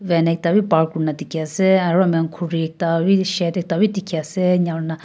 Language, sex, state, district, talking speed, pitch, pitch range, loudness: Nagamese, female, Nagaland, Kohima, 240 wpm, 170 Hz, 160-185 Hz, -19 LUFS